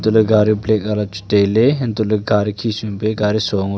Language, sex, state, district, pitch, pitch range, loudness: Wancho, male, Arunachal Pradesh, Longding, 105 Hz, 105-110 Hz, -17 LUFS